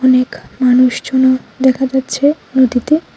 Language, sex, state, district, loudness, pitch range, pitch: Bengali, female, Tripura, Unakoti, -13 LUFS, 255-265 Hz, 260 Hz